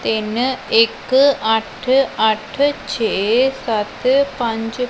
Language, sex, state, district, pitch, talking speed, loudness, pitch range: Punjabi, female, Punjab, Pathankot, 240 Hz, 85 wpm, -17 LUFS, 220-265 Hz